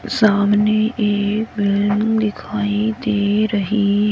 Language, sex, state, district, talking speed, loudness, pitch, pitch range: Hindi, female, Haryana, Rohtak, 100 wpm, -18 LUFS, 210 Hz, 205-215 Hz